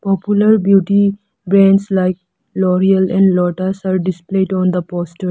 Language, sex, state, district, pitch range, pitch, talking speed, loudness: English, female, Arunachal Pradesh, Lower Dibang Valley, 185-195 Hz, 190 Hz, 135 wpm, -14 LUFS